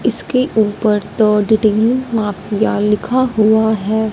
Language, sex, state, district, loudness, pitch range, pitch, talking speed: Hindi, female, Punjab, Fazilka, -15 LUFS, 210-225 Hz, 220 Hz, 115 wpm